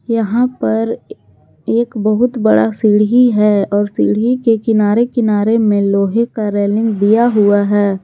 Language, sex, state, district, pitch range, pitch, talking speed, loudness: Hindi, female, Jharkhand, Garhwa, 205-230 Hz, 215 Hz, 140 wpm, -13 LUFS